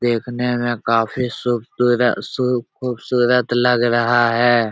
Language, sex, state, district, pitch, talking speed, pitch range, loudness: Hindi, male, Bihar, Jahanabad, 120 Hz, 125 wpm, 120-125 Hz, -18 LUFS